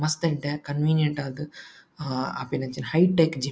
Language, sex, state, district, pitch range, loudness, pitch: Tulu, male, Karnataka, Dakshina Kannada, 135-160 Hz, -25 LUFS, 150 Hz